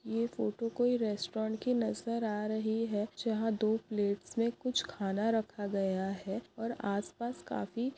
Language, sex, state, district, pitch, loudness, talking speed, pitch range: Hindi, male, Bihar, Begusarai, 220 Hz, -35 LUFS, 165 wpm, 205-230 Hz